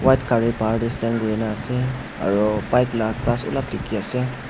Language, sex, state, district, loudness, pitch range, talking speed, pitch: Nagamese, male, Nagaland, Dimapur, -22 LUFS, 110-125 Hz, 200 wpm, 115 Hz